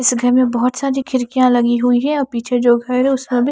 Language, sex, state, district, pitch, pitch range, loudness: Hindi, female, Chandigarh, Chandigarh, 250 Hz, 245-260 Hz, -16 LUFS